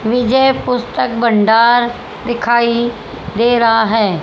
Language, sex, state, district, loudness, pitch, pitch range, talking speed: Hindi, female, Haryana, Charkhi Dadri, -13 LUFS, 235 Hz, 225-240 Hz, 100 wpm